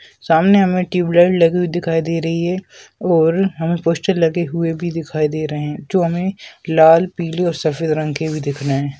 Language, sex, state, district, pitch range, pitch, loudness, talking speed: Hindi, male, Maharashtra, Aurangabad, 160-180 Hz, 165 Hz, -17 LUFS, 205 wpm